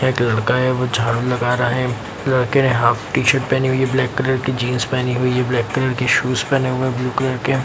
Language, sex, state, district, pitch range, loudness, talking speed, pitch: Hindi, male, Bihar, Lakhisarai, 120-130 Hz, -18 LUFS, 260 wpm, 125 Hz